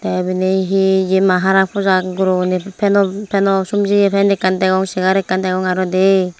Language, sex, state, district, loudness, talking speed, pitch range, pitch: Chakma, female, Tripura, Unakoti, -15 LUFS, 150 wpm, 185-195 Hz, 190 Hz